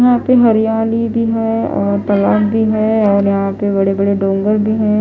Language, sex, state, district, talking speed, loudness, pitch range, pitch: Hindi, female, Odisha, Khordha, 180 wpm, -14 LUFS, 200-225 Hz, 215 Hz